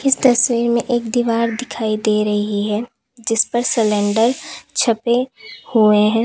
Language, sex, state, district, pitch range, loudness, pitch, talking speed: Hindi, female, Uttar Pradesh, Lalitpur, 215-240 Hz, -17 LUFS, 230 Hz, 135 wpm